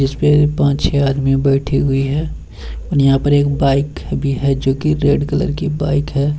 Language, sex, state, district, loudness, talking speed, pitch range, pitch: Hindi, male, Bihar, Bhagalpur, -16 LUFS, 195 wpm, 135-145 Hz, 140 Hz